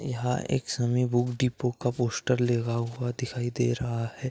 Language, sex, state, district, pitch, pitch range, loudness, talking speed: Hindi, male, Uttar Pradesh, Gorakhpur, 120 Hz, 120-125 Hz, -28 LUFS, 180 wpm